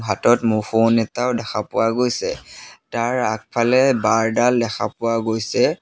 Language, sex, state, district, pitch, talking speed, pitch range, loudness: Assamese, male, Assam, Sonitpur, 115 Hz, 145 wpm, 110-120 Hz, -19 LUFS